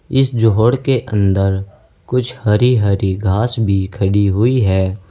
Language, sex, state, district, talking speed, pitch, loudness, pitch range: Hindi, male, Uttar Pradesh, Saharanpur, 140 wpm, 105 Hz, -15 LUFS, 95-125 Hz